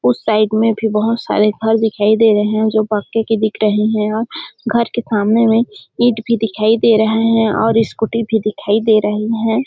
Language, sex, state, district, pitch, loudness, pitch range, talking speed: Hindi, female, Chhattisgarh, Sarguja, 220 Hz, -15 LUFS, 215-225 Hz, 225 wpm